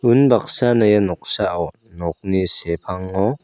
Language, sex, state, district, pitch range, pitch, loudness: Garo, male, Meghalaya, South Garo Hills, 90-115 Hz, 95 Hz, -18 LUFS